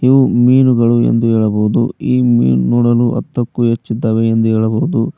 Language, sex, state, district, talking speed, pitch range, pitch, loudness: Kannada, male, Karnataka, Koppal, 125 wpm, 110-120 Hz, 115 Hz, -13 LUFS